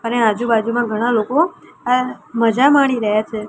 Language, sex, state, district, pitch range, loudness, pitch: Gujarati, female, Gujarat, Gandhinagar, 220-250 Hz, -17 LUFS, 235 Hz